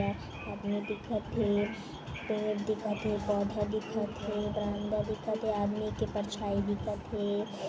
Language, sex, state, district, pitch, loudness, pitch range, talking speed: Hindi, female, Chhattisgarh, Kabirdham, 210 Hz, -34 LUFS, 205-215 Hz, 140 wpm